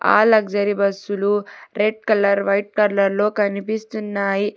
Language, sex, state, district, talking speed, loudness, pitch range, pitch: Telugu, female, Telangana, Hyderabad, 120 wpm, -19 LUFS, 200-210 Hz, 205 Hz